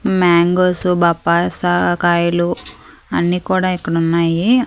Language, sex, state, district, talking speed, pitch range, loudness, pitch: Telugu, female, Andhra Pradesh, Manyam, 90 wpm, 170-180 Hz, -15 LUFS, 175 Hz